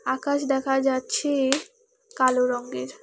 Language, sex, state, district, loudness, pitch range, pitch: Bengali, female, West Bengal, Alipurduar, -24 LUFS, 255-300 Hz, 270 Hz